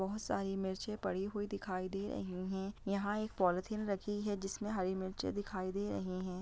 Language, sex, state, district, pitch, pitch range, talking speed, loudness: Hindi, female, Bihar, Begusarai, 195 Hz, 185-205 Hz, 205 wpm, -39 LUFS